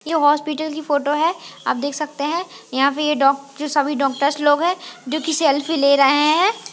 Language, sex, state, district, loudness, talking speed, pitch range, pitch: Hindi, female, Maharashtra, Aurangabad, -19 LUFS, 205 wpm, 285-320 Hz, 295 Hz